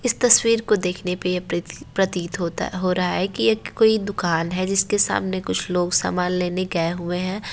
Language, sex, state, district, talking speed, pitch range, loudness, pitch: Hindi, female, Uttar Pradesh, Varanasi, 205 wpm, 180-200 Hz, -21 LUFS, 180 Hz